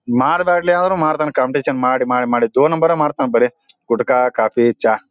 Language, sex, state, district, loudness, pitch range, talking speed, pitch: Kannada, male, Karnataka, Bijapur, -16 LUFS, 120-160 Hz, 165 wpm, 130 Hz